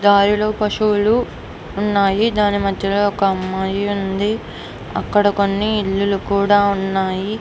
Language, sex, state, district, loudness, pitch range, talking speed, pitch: Telugu, female, Andhra Pradesh, Anantapur, -17 LUFS, 195-210 Hz, 105 wpm, 200 Hz